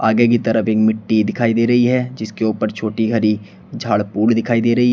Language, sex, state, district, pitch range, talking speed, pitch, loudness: Hindi, male, Uttar Pradesh, Shamli, 110-120 Hz, 220 wpm, 110 Hz, -17 LUFS